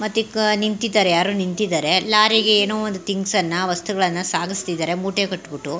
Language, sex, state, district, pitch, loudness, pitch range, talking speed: Kannada, female, Karnataka, Mysore, 195 Hz, -19 LUFS, 180-215 Hz, 165 wpm